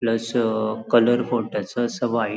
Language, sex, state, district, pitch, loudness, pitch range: Konkani, male, Goa, North and South Goa, 115 Hz, -22 LUFS, 110-120 Hz